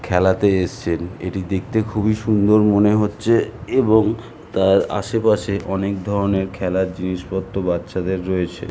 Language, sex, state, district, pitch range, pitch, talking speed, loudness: Bengali, male, West Bengal, North 24 Parganas, 95-105 Hz, 100 Hz, 115 wpm, -19 LUFS